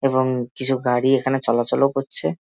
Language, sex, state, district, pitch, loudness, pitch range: Bengali, male, West Bengal, Malda, 130 Hz, -20 LUFS, 125-135 Hz